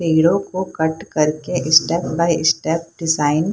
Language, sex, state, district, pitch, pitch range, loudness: Hindi, female, Bihar, Purnia, 165 Hz, 160-170 Hz, -18 LUFS